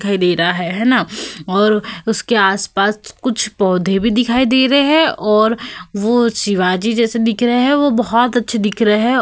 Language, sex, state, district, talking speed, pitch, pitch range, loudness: Hindi, female, Uttar Pradesh, Hamirpur, 190 wpm, 225 Hz, 200-240 Hz, -15 LUFS